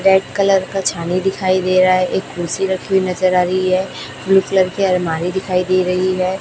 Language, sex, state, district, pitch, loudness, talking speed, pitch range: Hindi, female, Chhattisgarh, Raipur, 185 Hz, -16 LUFS, 225 wpm, 180-190 Hz